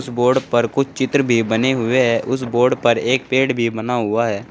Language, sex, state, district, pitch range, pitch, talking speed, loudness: Hindi, male, Uttar Pradesh, Saharanpur, 115-130 Hz, 125 Hz, 240 wpm, -17 LUFS